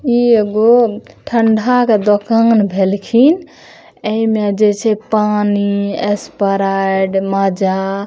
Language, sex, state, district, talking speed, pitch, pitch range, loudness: Maithili, female, Bihar, Madhepura, 105 wpm, 210 Hz, 200-225 Hz, -14 LUFS